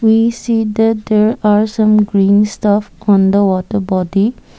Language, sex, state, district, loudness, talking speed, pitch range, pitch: English, female, Assam, Kamrup Metropolitan, -13 LUFS, 155 wpm, 200-220 Hz, 210 Hz